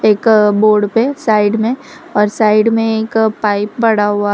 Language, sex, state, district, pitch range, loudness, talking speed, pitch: Hindi, female, Gujarat, Valsad, 210-225 Hz, -13 LUFS, 180 wpm, 215 Hz